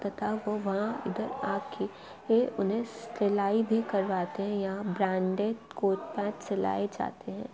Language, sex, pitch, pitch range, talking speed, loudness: Maithili, female, 205 Hz, 195-220 Hz, 145 wpm, -31 LUFS